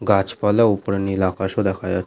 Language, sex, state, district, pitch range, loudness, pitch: Bengali, male, West Bengal, Malda, 95-105 Hz, -20 LUFS, 95 Hz